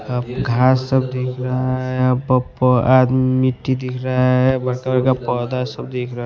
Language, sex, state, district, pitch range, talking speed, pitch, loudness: Hindi, male, Bihar, West Champaran, 125-130 Hz, 155 wpm, 130 Hz, -18 LUFS